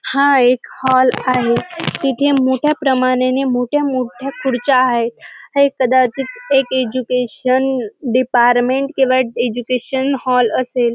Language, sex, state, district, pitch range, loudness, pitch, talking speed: Marathi, female, Maharashtra, Dhule, 250-270 Hz, -16 LUFS, 255 Hz, 105 wpm